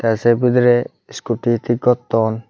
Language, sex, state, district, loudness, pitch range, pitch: Chakma, male, Tripura, Unakoti, -17 LUFS, 115-120 Hz, 120 Hz